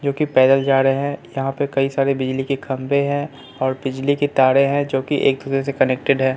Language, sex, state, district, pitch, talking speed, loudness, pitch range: Hindi, male, Bihar, Katihar, 135 Hz, 225 wpm, -19 LUFS, 135-140 Hz